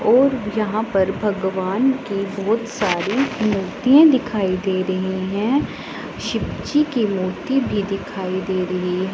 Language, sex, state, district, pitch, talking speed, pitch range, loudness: Hindi, female, Punjab, Pathankot, 200 Hz, 125 wpm, 190-240 Hz, -20 LUFS